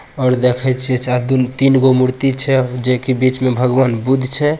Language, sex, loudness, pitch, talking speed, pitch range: Bhojpuri, male, -15 LUFS, 130 Hz, 210 wpm, 125-130 Hz